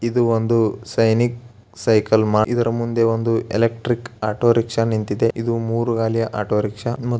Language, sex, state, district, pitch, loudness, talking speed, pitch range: Kannada, male, Karnataka, Bellary, 115 Hz, -19 LUFS, 125 wpm, 110-115 Hz